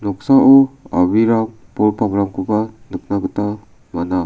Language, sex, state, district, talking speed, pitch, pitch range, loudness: Garo, male, Meghalaya, South Garo Hills, 85 wpm, 105 Hz, 100-115 Hz, -16 LUFS